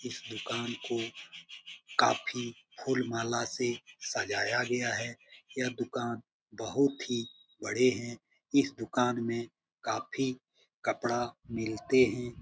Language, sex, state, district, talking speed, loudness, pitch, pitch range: Hindi, male, Bihar, Jamui, 105 wpm, -32 LUFS, 120 Hz, 115-125 Hz